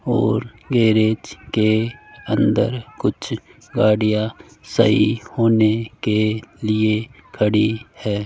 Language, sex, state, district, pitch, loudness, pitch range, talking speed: Hindi, male, Rajasthan, Jaipur, 110 Hz, -19 LUFS, 105-115 Hz, 85 wpm